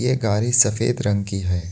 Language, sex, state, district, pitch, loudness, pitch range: Hindi, male, Assam, Kamrup Metropolitan, 105 Hz, -20 LUFS, 100-120 Hz